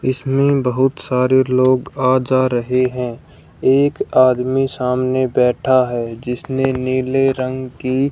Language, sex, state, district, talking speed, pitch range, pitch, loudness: Hindi, male, Haryana, Jhajjar, 125 wpm, 125-135 Hz, 130 Hz, -17 LUFS